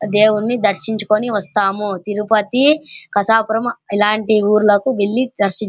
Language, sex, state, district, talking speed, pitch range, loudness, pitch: Telugu, male, Andhra Pradesh, Anantapur, 105 wpm, 205-225 Hz, -16 LUFS, 215 Hz